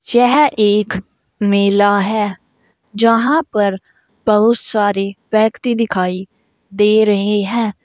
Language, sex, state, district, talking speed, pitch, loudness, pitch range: Hindi, female, Uttar Pradesh, Saharanpur, 100 wpm, 210 Hz, -15 LUFS, 200-230 Hz